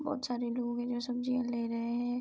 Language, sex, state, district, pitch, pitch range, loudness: Hindi, female, Uttar Pradesh, Hamirpur, 245 Hz, 240-250 Hz, -34 LUFS